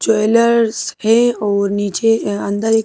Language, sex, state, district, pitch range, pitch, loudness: Hindi, female, Madhya Pradesh, Bhopal, 205-230 Hz, 220 Hz, -15 LUFS